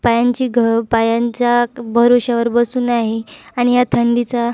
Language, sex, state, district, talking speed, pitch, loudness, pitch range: Marathi, female, Maharashtra, Nagpur, 120 wpm, 240 Hz, -15 LUFS, 235-245 Hz